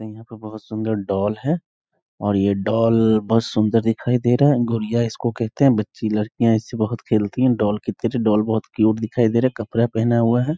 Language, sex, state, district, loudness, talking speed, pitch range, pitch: Hindi, male, Bihar, East Champaran, -20 LUFS, 210 wpm, 110-120 Hz, 115 Hz